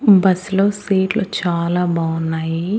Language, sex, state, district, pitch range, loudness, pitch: Telugu, female, Andhra Pradesh, Annamaya, 170-200 Hz, -18 LUFS, 185 Hz